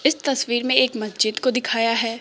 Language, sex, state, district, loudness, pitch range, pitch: Hindi, female, Rajasthan, Jaipur, -20 LUFS, 225-255 Hz, 240 Hz